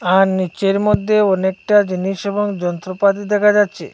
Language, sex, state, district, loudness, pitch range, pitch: Bengali, male, Assam, Hailakandi, -16 LUFS, 185-205 Hz, 195 Hz